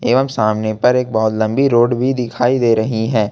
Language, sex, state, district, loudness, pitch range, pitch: Hindi, male, Jharkhand, Ranchi, -15 LUFS, 110-125 Hz, 115 Hz